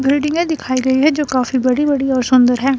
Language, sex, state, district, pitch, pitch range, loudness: Hindi, female, Himachal Pradesh, Shimla, 270 Hz, 255-290 Hz, -15 LUFS